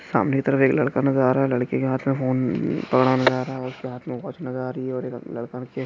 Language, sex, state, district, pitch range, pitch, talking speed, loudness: Hindi, male, Andhra Pradesh, Anantapur, 125-130 Hz, 130 Hz, 215 wpm, -23 LUFS